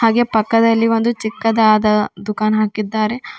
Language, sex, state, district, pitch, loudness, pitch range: Kannada, female, Karnataka, Bidar, 220 Hz, -16 LUFS, 215-230 Hz